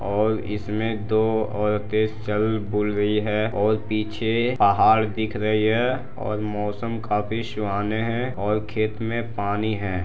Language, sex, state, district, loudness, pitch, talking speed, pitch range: Hindi, male, Bihar, Jamui, -23 LUFS, 110 Hz, 145 wpm, 105-110 Hz